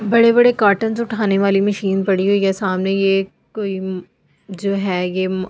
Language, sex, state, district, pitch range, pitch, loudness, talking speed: Hindi, female, Delhi, New Delhi, 190-205 Hz, 195 Hz, -17 LUFS, 150 wpm